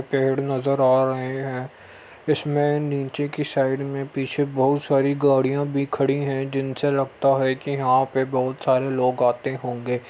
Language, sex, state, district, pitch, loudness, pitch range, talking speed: Hindi, male, Uttar Pradesh, Muzaffarnagar, 135 Hz, -22 LUFS, 130-140 Hz, 165 wpm